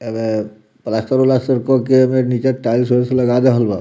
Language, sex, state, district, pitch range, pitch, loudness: Bhojpuri, male, Bihar, Muzaffarpur, 110-130 Hz, 125 Hz, -15 LUFS